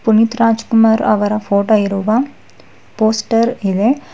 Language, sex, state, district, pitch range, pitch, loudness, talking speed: Kannada, female, Karnataka, Bangalore, 210-230 Hz, 220 Hz, -14 LUFS, 115 wpm